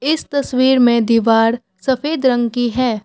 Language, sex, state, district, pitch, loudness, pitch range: Hindi, female, Assam, Kamrup Metropolitan, 245 Hz, -15 LUFS, 230-265 Hz